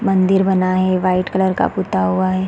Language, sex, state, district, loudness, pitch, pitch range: Hindi, female, Chhattisgarh, Sarguja, -16 LUFS, 185 Hz, 185-190 Hz